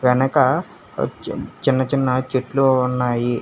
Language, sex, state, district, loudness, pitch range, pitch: Telugu, male, Telangana, Hyderabad, -20 LUFS, 125-135 Hz, 130 Hz